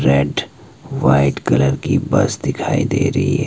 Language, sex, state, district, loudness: Hindi, male, Himachal Pradesh, Shimla, -17 LUFS